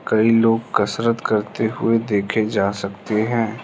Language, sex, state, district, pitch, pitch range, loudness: Hindi, male, Arunachal Pradesh, Lower Dibang Valley, 110 Hz, 105-115 Hz, -19 LUFS